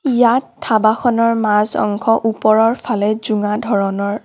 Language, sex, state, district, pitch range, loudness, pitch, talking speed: Assamese, female, Assam, Kamrup Metropolitan, 210-230 Hz, -16 LUFS, 220 Hz, 115 wpm